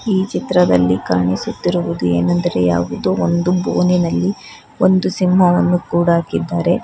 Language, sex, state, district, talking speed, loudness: Kannada, female, Karnataka, Bangalore, 90 wpm, -16 LUFS